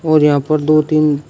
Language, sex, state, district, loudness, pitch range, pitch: Hindi, male, Uttar Pradesh, Shamli, -13 LUFS, 150-155 Hz, 155 Hz